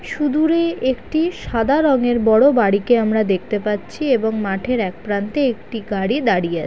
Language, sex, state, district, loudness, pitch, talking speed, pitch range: Bengali, female, West Bengal, North 24 Parganas, -18 LUFS, 235 Hz, 155 wpm, 205-280 Hz